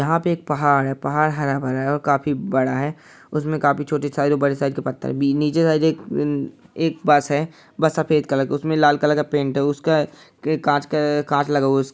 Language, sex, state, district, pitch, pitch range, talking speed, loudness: Hindi, male, Bihar, Saharsa, 145 Hz, 140-155 Hz, 240 wpm, -20 LUFS